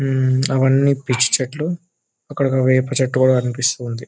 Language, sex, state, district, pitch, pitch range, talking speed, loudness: Telugu, male, Telangana, Nalgonda, 130 Hz, 130-135 Hz, 130 wpm, -17 LUFS